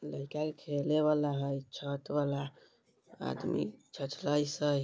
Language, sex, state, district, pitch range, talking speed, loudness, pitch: Bajjika, female, Bihar, Vaishali, 135-145 Hz, 135 wpm, -35 LUFS, 140 Hz